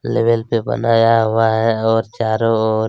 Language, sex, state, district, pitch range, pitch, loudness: Hindi, male, Chhattisgarh, Kabirdham, 110-115 Hz, 115 Hz, -16 LUFS